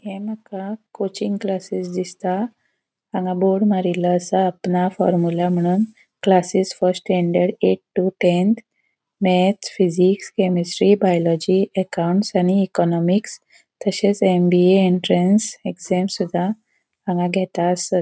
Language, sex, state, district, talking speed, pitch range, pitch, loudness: Konkani, female, Goa, North and South Goa, 155 wpm, 180-200 Hz, 190 Hz, -19 LUFS